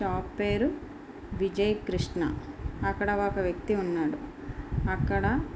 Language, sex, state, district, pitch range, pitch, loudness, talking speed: Telugu, female, Andhra Pradesh, Guntur, 195-275 Hz, 205 Hz, -30 LUFS, 110 wpm